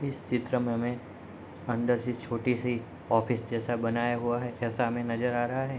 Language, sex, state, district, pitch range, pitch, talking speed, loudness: Hindi, male, Bihar, Gopalganj, 115-125 Hz, 120 Hz, 185 wpm, -30 LUFS